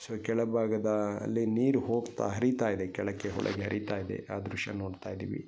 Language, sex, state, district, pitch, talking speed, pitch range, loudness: Kannada, male, Karnataka, Gulbarga, 105 Hz, 165 wpm, 100-115 Hz, -32 LUFS